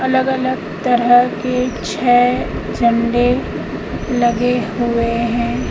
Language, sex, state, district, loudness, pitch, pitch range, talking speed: Hindi, female, Madhya Pradesh, Umaria, -16 LUFS, 245 Hz, 235-250 Hz, 95 wpm